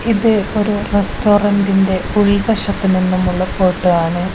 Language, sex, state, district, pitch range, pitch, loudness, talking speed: Malayalam, female, Kerala, Kozhikode, 185-205 Hz, 200 Hz, -15 LUFS, 95 wpm